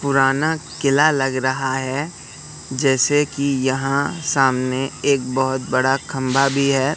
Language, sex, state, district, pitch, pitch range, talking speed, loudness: Hindi, male, Madhya Pradesh, Katni, 135 Hz, 130-140 Hz, 130 wpm, -19 LUFS